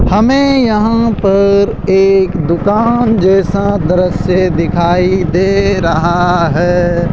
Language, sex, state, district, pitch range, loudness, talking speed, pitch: Hindi, male, Rajasthan, Jaipur, 175-200 Hz, -11 LUFS, 90 wpm, 190 Hz